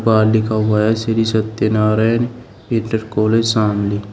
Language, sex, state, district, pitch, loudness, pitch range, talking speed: Hindi, male, Uttar Pradesh, Shamli, 110 Hz, -16 LUFS, 110-115 Hz, 130 wpm